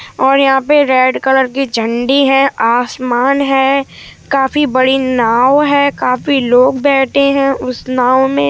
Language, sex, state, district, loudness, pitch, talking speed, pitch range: Hindi, female, Uttar Pradesh, Budaun, -12 LUFS, 265 Hz, 155 wpm, 255-275 Hz